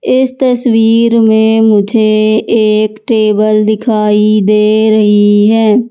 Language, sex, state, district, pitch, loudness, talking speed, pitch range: Hindi, female, Madhya Pradesh, Katni, 215 Hz, -9 LUFS, 100 wpm, 215-225 Hz